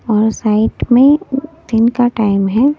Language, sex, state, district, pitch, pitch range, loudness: Hindi, female, Delhi, New Delhi, 235 Hz, 215-270 Hz, -13 LUFS